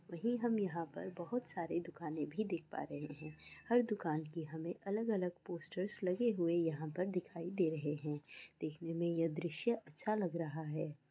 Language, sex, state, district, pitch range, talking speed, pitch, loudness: Hindi, female, Bihar, Kishanganj, 160-195 Hz, 180 wpm, 170 Hz, -40 LUFS